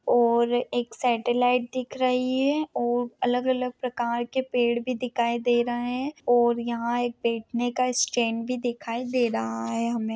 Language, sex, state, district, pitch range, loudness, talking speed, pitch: Hindi, female, Maharashtra, Pune, 235-250 Hz, -26 LUFS, 170 wpm, 240 Hz